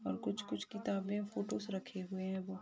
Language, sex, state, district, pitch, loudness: Hindi, female, Uttar Pradesh, Gorakhpur, 190 Hz, -41 LUFS